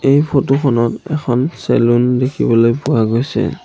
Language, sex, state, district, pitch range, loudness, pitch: Assamese, male, Assam, Sonitpur, 120-140 Hz, -15 LUFS, 130 Hz